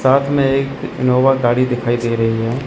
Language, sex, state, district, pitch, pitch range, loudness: Hindi, male, Chandigarh, Chandigarh, 125 Hz, 120-135 Hz, -16 LUFS